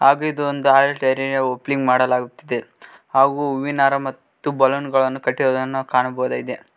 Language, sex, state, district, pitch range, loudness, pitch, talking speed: Kannada, male, Karnataka, Koppal, 130-140 Hz, -19 LUFS, 135 Hz, 140 wpm